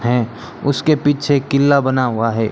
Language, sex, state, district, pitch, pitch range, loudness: Hindi, male, Rajasthan, Bikaner, 130 Hz, 120-145 Hz, -16 LUFS